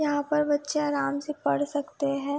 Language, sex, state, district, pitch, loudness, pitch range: Hindi, female, Uttar Pradesh, Etah, 290 Hz, -27 LUFS, 285-300 Hz